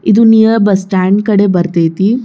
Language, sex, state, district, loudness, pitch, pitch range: Kannada, female, Karnataka, Bijapur, -10 LUFS, 200 Hz, 190-220 Hz